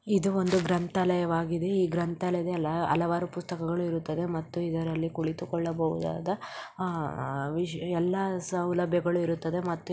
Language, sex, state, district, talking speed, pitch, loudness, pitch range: Kannada, male, Karnataka, Raichur, 110 wpm, 175 Hz, -30 LUFS, 165-180 Hz